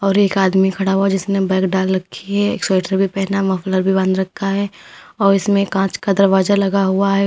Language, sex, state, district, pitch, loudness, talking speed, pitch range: Hindi, female, Uttar Pradesh, Lalitpur, 195 Hz, -17 LUFS, 230 wpm, 190-195 Hz